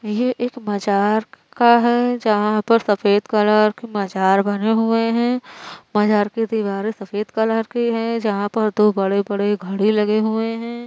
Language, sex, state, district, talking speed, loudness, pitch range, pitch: Hindi, female, Uttar Pradesh, Varanasi, 160 wpm, -19 LUFS, 205-230 Hz, 215 Hz